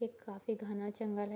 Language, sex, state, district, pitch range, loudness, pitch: Hindi, female, Bihar, Sitamarhi, 205-225 Hz, -41 LUFS, 210 Hz